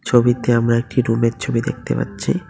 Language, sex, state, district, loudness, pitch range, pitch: Bengali, male, West Bengal, Cooch Behar, -19 LUFS, 115-120 Hz, 120 Hz